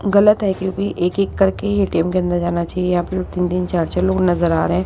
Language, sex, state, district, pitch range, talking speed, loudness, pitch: Hindi, female, Chhattisgarh, Raipur, 175-195 Hz, 245 wpm, -18 LUFS, 180 Hz